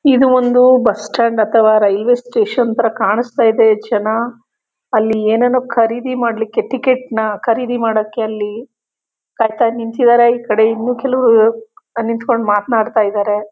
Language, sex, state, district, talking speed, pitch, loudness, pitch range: Kannada, female, Karnataka, Chamarajanagar, 115 wpm, 230 Hz, -14 LUFS, 220-250 Hz